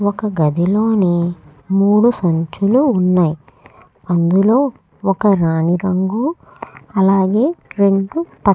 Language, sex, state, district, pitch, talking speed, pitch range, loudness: Telugu, female, Andhra Pradesh, Krishna, 195 Hz, 75 wpm, 175-210 Hz, -16 LUFS